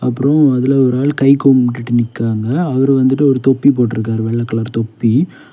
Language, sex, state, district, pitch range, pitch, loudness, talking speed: Tamil, male, Tamil Nadu, Kanyakumari, 115-135 Hz, 125 Hz, -14 LUFS, 165 wpm